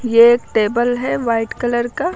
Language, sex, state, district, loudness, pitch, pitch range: Hindi, female, Uttar Pradesh, Lucknow, -16 LUFS, 240 Hz, 230-245 Hz